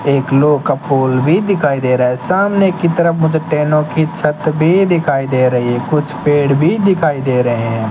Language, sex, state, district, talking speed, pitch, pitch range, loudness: Hindi, male, Rajasthan, Bikaner, 210 wpm, 150 Hz, 130-165 Hz, -13 LUFS